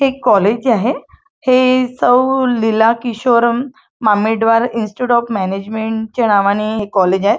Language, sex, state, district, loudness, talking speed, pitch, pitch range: Marathi, female, Maharashtra, Chandrapur, -14 LUFS, 140 wpm, 230 Hz, 215-250 Hz